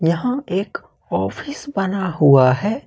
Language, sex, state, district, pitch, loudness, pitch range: Hindi, male, Jharkhand, Ranchi, 195 Hz, -18 LUFS, 165-250 Hz